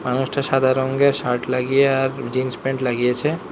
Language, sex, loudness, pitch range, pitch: Bengali, male, -20 LUFS, 125-135 Hz, 130 Hz